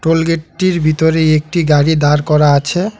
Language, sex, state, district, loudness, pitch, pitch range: Bengali, male, West Bengal, Alipurduar, -13 LUFS, 160 Hz, 150-165 Hz